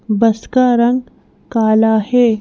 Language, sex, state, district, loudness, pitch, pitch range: Hindi, female, Madhya Pradesh, Bhopal, -14 LUFS, 230 Hz, 220-245 Hz